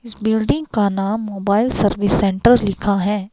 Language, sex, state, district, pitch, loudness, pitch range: Hindi, female, Himachal Pradesh, Shimla, 205 Hz, -18 LUFS, 200-220 Hz